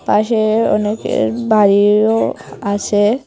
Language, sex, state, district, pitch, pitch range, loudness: Bengali, female, Tripura, Unakoti, 210 Hz, 205-220 Hz, -15 LUFS